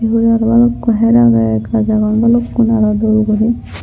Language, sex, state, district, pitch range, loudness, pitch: Chakma, female, Tripura, Unakoti, 215-230 Hz, -12 LUFS, 225 Hz